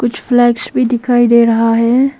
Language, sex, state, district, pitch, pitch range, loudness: Hindi, female, Arunachal Pradesh, Papum Pare, 240 Hz, 235-245 Hz, -12 LUFS